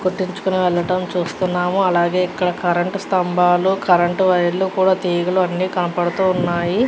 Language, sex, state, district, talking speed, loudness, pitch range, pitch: Telugu, female, Andhra Pradesh, Krishna, 140 wpm, -18 LUFS, 175-185 Hz, 180 Hz